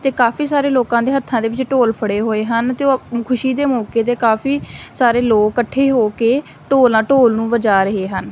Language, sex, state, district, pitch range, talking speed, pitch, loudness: Punjabi, female, Punjab, Kapurthala, 225-265 Hz, 225 wpm, 240 Hz, -16 LUFS